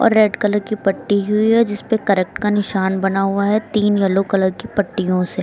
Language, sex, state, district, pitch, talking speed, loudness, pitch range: Hindi, female, Uttar Pradesh, Lucknow, 205 Hz, 210 wpm, -17 LUFS, 195-215 Hz